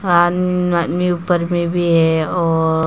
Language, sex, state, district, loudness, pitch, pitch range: Hindi, female, Arunachal Pradesh, Papum Pare, -16 LUFS, 175 Hz, 165-175 Hz